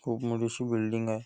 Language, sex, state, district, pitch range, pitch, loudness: Marathi, male, Maharashtra, Nagpur, 115-120 Hz, 115 Hz, -31 LUFS